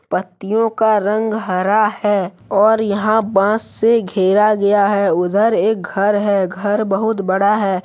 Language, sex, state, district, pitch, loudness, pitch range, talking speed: Hindi, male, Jharkhand, Deoghar, 205 Hz, -16 LUFS, 195-215 Hz, 155 wpm